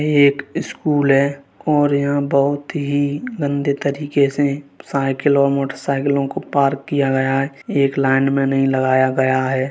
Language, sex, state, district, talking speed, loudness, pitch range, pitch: Hindi, male, Uttar Pradesh, Varanasi, 160 wpm, -18 LUFS, 135-145 Hz, 140 Hz